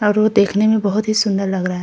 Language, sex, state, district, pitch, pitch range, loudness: Hindi, female, Uttar Pradesh, Jyotiba Phule Nagar, 205 Hz, 195-215 Hz, -16 LUFS